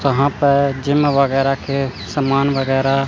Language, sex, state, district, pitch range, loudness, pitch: Hindi, male, Chandigarh, Chandigarh, 135-140 Hz, -17 LUFS, 135 Hz